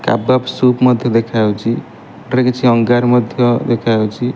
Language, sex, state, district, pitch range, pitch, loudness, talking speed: Odia, male, Odisha, Malkangiri, 115-125 Hz, 120 Hz, -14 LUFS, 125 wpm